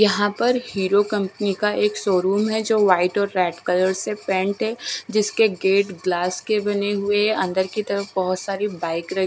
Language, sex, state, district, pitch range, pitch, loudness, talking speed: Hindi, female, Bihar, West Champaran, 190-210 Hz, 200 Hz, -21 LUFS, 195 wpm